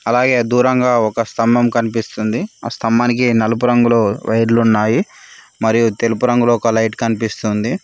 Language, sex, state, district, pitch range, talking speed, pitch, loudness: Telugu, male, Telangana, Mahabubabad, 110-120 Hz, 130 wpm, 115 Hz, -15 LUFS